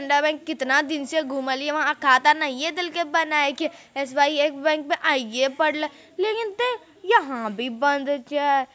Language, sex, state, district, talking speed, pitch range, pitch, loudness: Magahi, female, Bihar, Jamui, 170 wpm, 275-320 Hz, 300 Hz, -23 LUFS